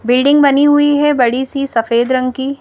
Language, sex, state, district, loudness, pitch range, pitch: Hindi, female, Madhya Pradesh, Bhopal, -12 LUFS, 250-285 Hz, 270 Hz